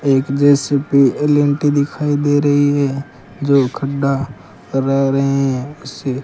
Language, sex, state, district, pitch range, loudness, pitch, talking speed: Hindi, male, Rajasthan, Bikaner, 135-145 Hz, -16 LUFS, 140 Hz, 125 wpm